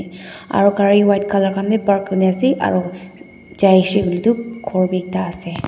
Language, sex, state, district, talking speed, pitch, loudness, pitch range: Nagamese, female, Nagaland, Dimapur, 180 wpm, 195 Hz, -16 LUFS, 185-200 Hz